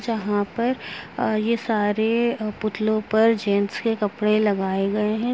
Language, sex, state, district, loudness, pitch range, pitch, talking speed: Hindi, female, Uttar Pradesh, Etah, -22 LUFS, 205-225 Hz, 215 Hz, 135 wpm